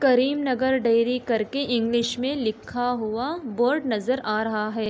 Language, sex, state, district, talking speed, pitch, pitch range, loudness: Hindi, female, Uttar Pradesh, Jalaun, 170 wpm, 245 Hz, 225-260 Hz, -24 LUFS